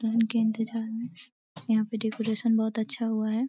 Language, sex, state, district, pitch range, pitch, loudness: Hindi, female, Uttar Pradesh, Deoria, 220-230 Hz, 225 Hz, -28 LUFS